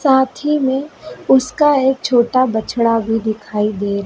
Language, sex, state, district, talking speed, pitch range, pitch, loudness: Hindi, male, Madhya Pradesh, Dhar, 150 wpm, 220-265 Hz, 255 Hz, -16 LUFS